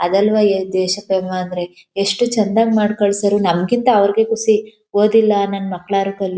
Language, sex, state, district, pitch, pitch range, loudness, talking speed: Kannada, female, Karnataka, Chamarajanagar, 200 Hz, 190-215 Hz, -16 LUFS, 130 wpm